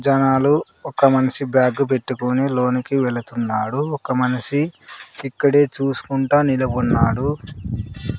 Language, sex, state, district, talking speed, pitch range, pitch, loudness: Telugu, male, Andhra Pradesh, Sri Satya Sai, 90 wpm, 125-140 Hz, 130 Hz, -19 LUFS